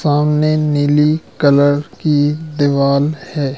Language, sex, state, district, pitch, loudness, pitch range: Hindi, male, Madhya Pradesh, Katni, 145 Hz, -14 LUFS, 145-150 Hz